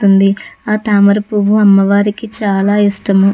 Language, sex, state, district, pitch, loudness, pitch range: Telugu, female, Andhra Pradesh, Chittoor, 205 Hz, -12 LUFS, 195-210 Hz